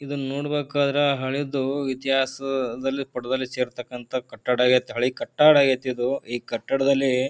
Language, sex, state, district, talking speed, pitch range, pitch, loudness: Kannada, male, Karnataka, Bijapur, 115 wpm, 125-140 Hz, 135 Hz, -23 LUFS